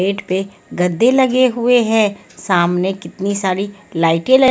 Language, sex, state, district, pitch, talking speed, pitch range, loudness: Hindi, female, Haryana, Rohtak, 200 Hz, 145 wpm, 185-240 Hz, -16 LUFS